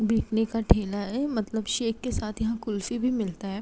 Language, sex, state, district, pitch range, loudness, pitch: Hindi, female, Uttar Pradesh, Jalaun, 210-230 Hz, -28 LUFS, 220 Hz